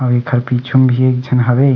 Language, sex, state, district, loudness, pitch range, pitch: Chhattisgarhi, male, Chhattisgarh, Bastar, -14 LUFS, 125-130 Hz, 125 Hz